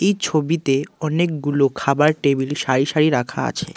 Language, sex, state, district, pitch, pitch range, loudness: Bengali, male, West Bengal, Alipurduar, 150 Hz, 135-155 Hz, -19 LUFS